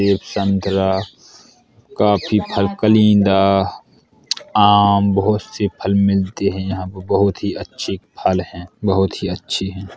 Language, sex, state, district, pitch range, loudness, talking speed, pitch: Hindi, male, Uttar Pradesh, Hamirpur, 95-100 Hz, -17 LUFS, 130 wpm, 100 Hz